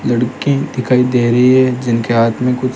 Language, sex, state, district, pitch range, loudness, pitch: Hindi, male, Rajasthan, Bikaner, 120-130 Hz, -14 LUFS, 125 Hz